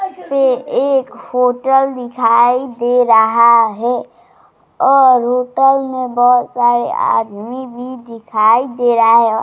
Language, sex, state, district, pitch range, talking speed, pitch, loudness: Hindi, female, Bihar, Bhagalpur, 235-260 Hz, 120 wpm, 245 Hz, -13 LUFS